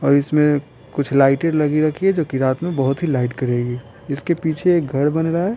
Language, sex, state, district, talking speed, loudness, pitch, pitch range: Hindi, male, Bihar, Patna, 235 wpm, -19 LUFS, 145 Hz, 135-165 Hz